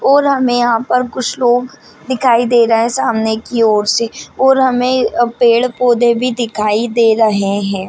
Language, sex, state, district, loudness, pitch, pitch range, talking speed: Hindi, female, Bihar, Madhepura, -13 LUFS, 240 Hz, 225-250 Hz, 160 wpm